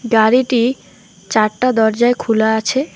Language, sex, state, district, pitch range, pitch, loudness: Bengali, female, West Bengal, Alipurduar, 220-250 Hz, 235 Hz, -15 LUFS